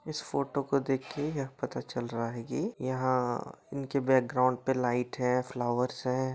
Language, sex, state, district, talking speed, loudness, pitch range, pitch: Hindi, male, Jharkhand, Sahebganj, 170 wpm, -31 LUFS, 125-140 Hz, 130 Hz